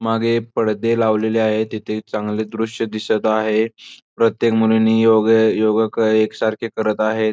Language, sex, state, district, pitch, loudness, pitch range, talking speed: Marathi, male, Maharashtra, Pune, 110 Hz, -18 LUFS, 110-115 Hz, 140 wpm